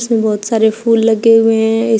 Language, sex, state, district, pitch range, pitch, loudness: Hindi, female, Uttar Pradesh, Shamli, 220-230 Hz, 225 Hz, -12 LUFS